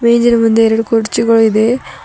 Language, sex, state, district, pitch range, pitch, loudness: Kannada, female, Karnataka, Bidar, 225-235 Hz, 225 Hz, -11 LUFS